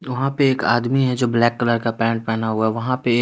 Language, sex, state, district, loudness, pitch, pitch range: Hindi, male, Bihar, West Champaran, -19 LUFS, 120 Hz, 115-130 Hz